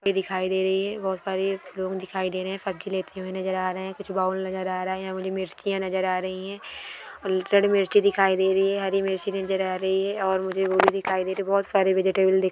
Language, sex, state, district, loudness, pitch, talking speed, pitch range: Hindi, female, Maharashtra, Dhule, -25 LUFS, 190 Hz, 235 wpm, 190-195 Hz